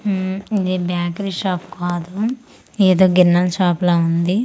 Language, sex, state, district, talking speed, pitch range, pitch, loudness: Telugu, female, Andhra Pradesh, Manyam, 135 wpm, 175-195 Hz, 185 Hz, -18 LUFS